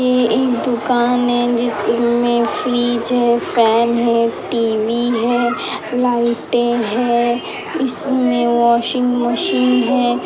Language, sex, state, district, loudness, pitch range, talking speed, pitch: Hindi, female, Uttar Pradesh, Etah, -16 LUFS, 235-245 Hz, 100 wpm, 240 Hz